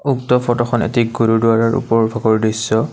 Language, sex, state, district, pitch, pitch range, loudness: Assamese, male, Assam, Kamrup Metropolitan, 115 Hz, 115-120 Hz, -16 LUFS